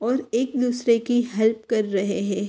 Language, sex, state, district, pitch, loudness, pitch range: Hindi, female, Uttar Pradesh, Hamirpur, 230 Hz, -22 LUFS, 210-245 Hz